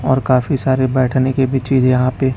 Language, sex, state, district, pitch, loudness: Hindi, male, Chhattisgarh, Raipur, 130 Hz, -15 LUFS